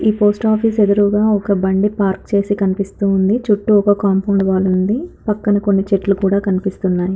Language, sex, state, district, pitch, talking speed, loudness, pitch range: Telugu, female, Andhra Pradesh, Anantapur, 200 Hz, 175 wpm, -16 LUFS, 195-210 Hz